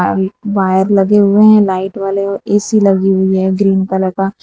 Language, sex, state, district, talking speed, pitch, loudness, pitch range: Hindi, female, Gujarat, Valsad, 205 wpm, 195 Hz, -12 LUFS, 190-200 Hz